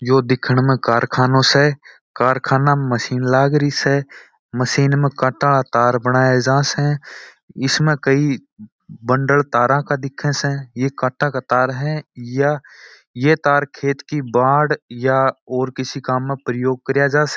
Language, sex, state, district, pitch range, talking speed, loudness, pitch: Marwari, male, Rajasthan, Churu, 130-145 Hz, 150 wpm, -17 LUFS, 135 Hz